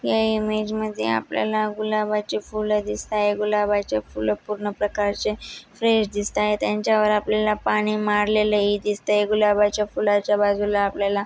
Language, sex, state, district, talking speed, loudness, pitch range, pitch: Marathi, female, Maharashtra, Dhule, 130 wpm, -22 LUFS, 205-215 Hz, 210 Hz